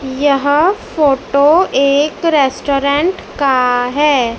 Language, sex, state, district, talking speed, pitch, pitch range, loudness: Hindi, male, Madhya Pradesh, Dhar, 80 wpm, 280 Hz, 270-300 Hz, -13 LUFS